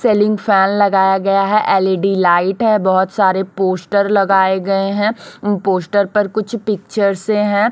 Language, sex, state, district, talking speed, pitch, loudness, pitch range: Hindi, female, Chhattisgarh, Raipur, 165 wpm, 195 Hz, -15 LUFS, 190-210 Hz